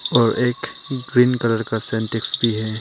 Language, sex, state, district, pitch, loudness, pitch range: Hindi, male, Arunachal Pradesh, Papum Pare, 115 Hz, -20 LUFS, 110-125 Hz